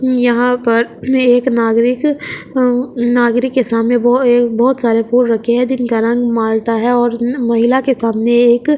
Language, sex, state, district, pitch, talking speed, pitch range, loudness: Hindi, female, Delhi, New Delhi, 240 Hz, 165 wpm, 230-250 Hz, -13 LUFS